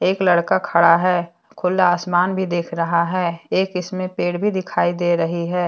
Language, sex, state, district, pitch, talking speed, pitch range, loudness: Hindi, female, Jharkhand, Deoghar, 175 Hz, 190 wpm, 170-185 Hz, -19 LUFS